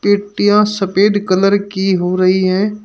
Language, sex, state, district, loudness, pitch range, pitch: Hindi, male, Uttar Pradesh, Shamli, -14 LUFS, 190-205 Hz, 200 Hz